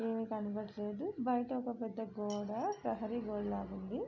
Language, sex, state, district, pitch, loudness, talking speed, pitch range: Telugu, female, Andhra Pradesh, Srikakulam, 220 Hz, -39 LUFS, 145 wpm, 210-240 Hz